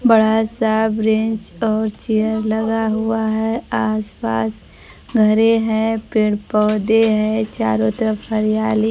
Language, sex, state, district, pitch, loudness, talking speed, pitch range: Hindi, female, Bihar, Kaimur, 220 Hz, -18 LUFS, 120 wpm, 210-220 Hz